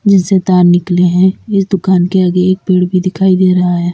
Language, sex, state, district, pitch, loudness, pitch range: Hindi, female, Uttar Pradesh, Lalitpur, 185 Hz, -11 LUFS, 180-190 Hz